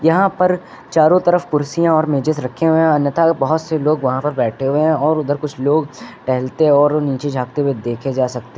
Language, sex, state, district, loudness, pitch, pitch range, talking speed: Hindi, male, Uttar Pradesh, Lucknow, -16 LUFS, 150 Hz, 135-160 Hz, 225 wpm